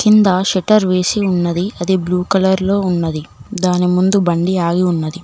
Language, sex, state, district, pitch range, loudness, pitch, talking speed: Telugu, female, Telangana, Mahabubabad, 175-195 Hz, -15 LUFS, 185 Hz, 160 wpm